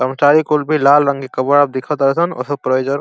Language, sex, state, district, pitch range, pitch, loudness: Bhojpuri, male, Uttar Pradesh, Deoria, 130-150 Hz, 140 Hz, -15 LUFS